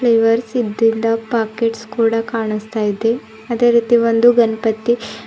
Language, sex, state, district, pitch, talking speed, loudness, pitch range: Kannada, female, Karnataka, Bidar, 225 Hz, 115 wpm, -16 LUFS, 225-235 Hz